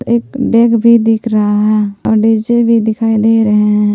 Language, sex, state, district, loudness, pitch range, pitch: Hindi, female, Jharkhand, Palamu, -11 LUFS, 210-230 Hz, 220 Hz